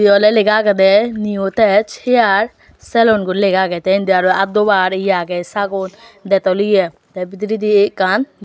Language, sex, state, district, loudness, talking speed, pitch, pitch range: Chakma, female, Tripura, West Tripura, -14 LUFS, 170 wpm, 200 Hz, 190-210 Hz